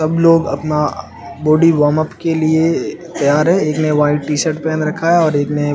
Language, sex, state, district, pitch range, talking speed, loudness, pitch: Hindi, male, Delhi, New Delhi, 150-160 Hz, 210 wpm, -15 LUFS, 155 Hz